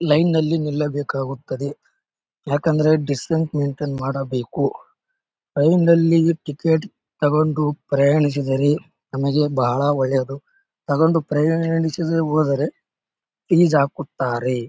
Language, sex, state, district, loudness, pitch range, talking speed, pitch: Kannada, male, Karnataka, Bellary, -20 LUFS, 140-160 Hz, 80 wpm, 150 Hz